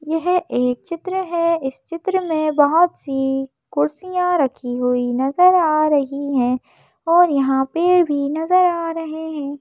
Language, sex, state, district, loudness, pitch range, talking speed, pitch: Hindi, female, Madhya Pradesh, Bhopal, -19 LUFS, 270-350 Hz, 150 wpm, 310 Hz